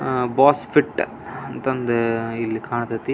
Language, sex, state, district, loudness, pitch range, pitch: Kannada, male, Karnataka, Belgaum, -21 LUFS, 115-130 Hz, 120 Hz